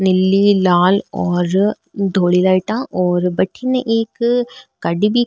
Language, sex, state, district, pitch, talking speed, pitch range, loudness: Rajasthani, female, Rajasthan, Nagaur, 195 Hz, 125 wpm, 180-225 Hz, -16 LUFS